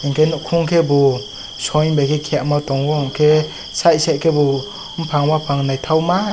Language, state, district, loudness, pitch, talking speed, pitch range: Kokborok, Tripura, West Tripura, -17 LUFS, 150 Hz, 170 wpm, 140-160 Hz